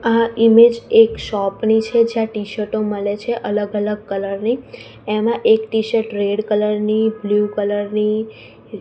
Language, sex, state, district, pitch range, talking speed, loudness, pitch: Gujarati, female, Gujarat, Gandhinagar, 210-225 Hz, 155 wpm, -17 LUFS, 215 Hz